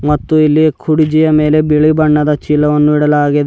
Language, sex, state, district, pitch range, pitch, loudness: Kannada, male, Karnataka, Bidar, 150-155 Hz, 150 Hz, -11 LUFS